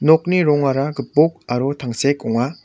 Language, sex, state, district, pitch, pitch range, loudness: Garo, male, Meghalaya, West Garo Hills, 140 Hz, 135-155 Hz, -18 LUFS